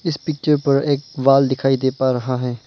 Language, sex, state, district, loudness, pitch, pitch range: Hindi, male, Arunachal Pradesh, Lower Dibang Valley, -18 LUFS, 135 Hz, 130-145 Hz